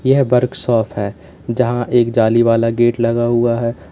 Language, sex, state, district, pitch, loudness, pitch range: Hindi, male, Uttar Pradesh, Lalitpur, 120 Hz, -15 LUFS, 115-120 Hz